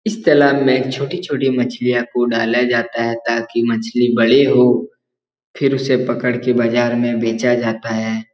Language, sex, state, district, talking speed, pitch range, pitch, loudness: Hindi, male, Bihar, Jahanabad, 160 wpm, 115-125 Hz, 120 Hz, -16 LUFS